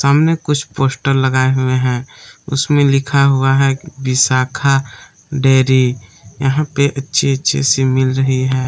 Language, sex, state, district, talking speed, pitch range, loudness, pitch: Hindi, male, Jharkhand, Palamu, 140 wpm, 130-140 Hz, -14 LUFS, 135 Hz